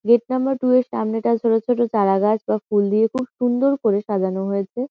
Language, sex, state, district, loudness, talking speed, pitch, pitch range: Bengali, female, West Bengal, Kolkata, -20 LUFS, 210 wpm, 225 Hz, 205-250 Hz